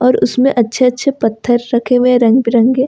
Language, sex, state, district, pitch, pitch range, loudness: Hindi, female, Jharkhand, Ranchi, 250 Hz, 240-255 Hz, -12 LUFS